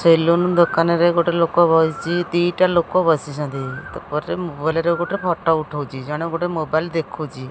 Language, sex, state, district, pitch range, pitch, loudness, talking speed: Odia, female, Odisha, Khordha, 155-175 Hz, 165 Hz, -19 LUFS, 135 wpm